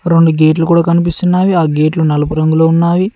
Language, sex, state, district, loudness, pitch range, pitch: Telugu, male, Telangana, Mahabubabad, -11 LUFS, 155-170 Hz, 165 Hz